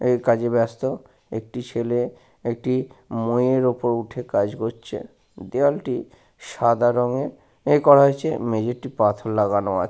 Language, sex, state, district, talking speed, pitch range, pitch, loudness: Bengali, male, West Bengal, Paschim Medinipur, 135 wpm, 115-130 Hz, 120 Hz, -22 LUFS